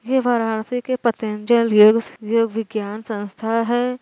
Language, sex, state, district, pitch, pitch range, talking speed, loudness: Hindi, female, Uttar Pradesh, Varanasi, 230 Hz, 220-240 Hz, 135 wpm, -19 LUFS